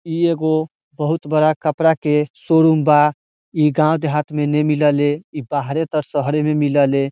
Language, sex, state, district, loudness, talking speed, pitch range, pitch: Bhojpuri, male, Bihar, Saran, -17 LUFS, 175 wpm, 150-155 Hz, 150 Hz